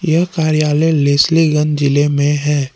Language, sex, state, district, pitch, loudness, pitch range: Hindi, male, Jharkhand, Palamu, 150 Hz, -14 LUFS, 145-160 Hz